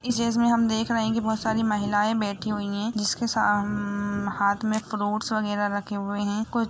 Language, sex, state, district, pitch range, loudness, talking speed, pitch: Hindi, female, Jharkhand, Jamtara, 205-225 Hz, -25 LUFS, 190 wpm, 210 Hz